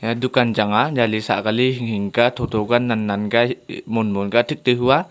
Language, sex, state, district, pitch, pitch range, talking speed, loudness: Wancho, male, Arunachal Pradesh, Longding, 120 Hz, 110-125 Hz, 200 wpm, -19 LUFS